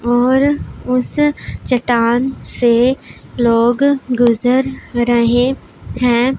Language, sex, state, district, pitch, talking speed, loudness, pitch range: Hindi, female, Punjab, Pathankot, 245 Hz, 75 wpm, -15 LUFS, 240-265 Hz